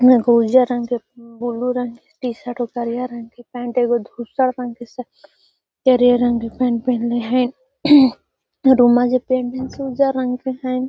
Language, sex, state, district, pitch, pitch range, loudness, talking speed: Magahi, female, Bihar, Gaya, 245 Hz, 240-255 Hz, -18 LUFS, 180 wpm